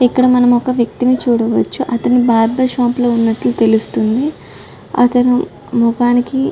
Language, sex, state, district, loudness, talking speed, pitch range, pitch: Telugu, female, Andhra Pradesh, Chittoor, -14 LUFS, 130 wpm, 235-255 Hz, 245 Hz